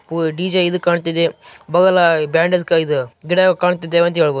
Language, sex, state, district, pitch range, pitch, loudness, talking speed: Kannada, male, Karnataka, Raichur, 165-180 Hz, 170 Hz, -16 LUFS, 150 wpm